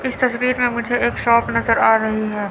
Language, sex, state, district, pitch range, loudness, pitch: Hindi, female, Chandigarh, Chandigarh, 225-245 Hz, -17 LUFS, 235 Hz